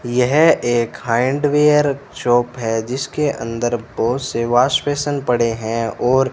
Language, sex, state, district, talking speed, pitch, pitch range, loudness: Hindi, male, Rajasthan, Bikaner, 150 wpm, 120 Hz, 115-140 Hz, -18 LUFS